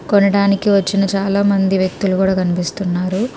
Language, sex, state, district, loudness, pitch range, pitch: Telugu, female, Andhra Pradesh, Krishna, -16 LUFS, 185-200 Hz, 195 Hz